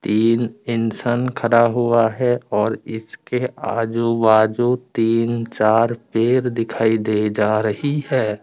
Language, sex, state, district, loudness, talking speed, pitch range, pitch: Hindi, male, Tripura, West Tripura, -19 LUFS, 120 wpm, 110-120 Hz, 115 Hz